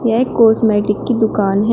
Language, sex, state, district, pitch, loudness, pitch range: Hindi, female, Uttar Pradesh, Shamli, 220 Hz, -14 LUFS, 210-230 Hz